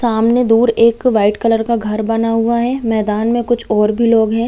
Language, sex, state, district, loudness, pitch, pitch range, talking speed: Hindi, female, Chhattisgarh, Bilaspur, -14 LUFS, 230 Hz, 220-235 Hz, 240 wpm